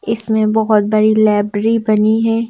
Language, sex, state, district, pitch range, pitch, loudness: Hindi, female, Madhya Pradesh, Bhopal, 215-225 Hz, 220 Hz, -14 LUFS